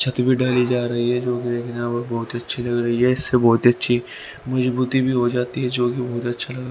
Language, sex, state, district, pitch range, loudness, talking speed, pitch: Hindi, male, Haryana, Rohtak, 120-125 Hz, -21 LUFS, 240 wpm, 125 Hz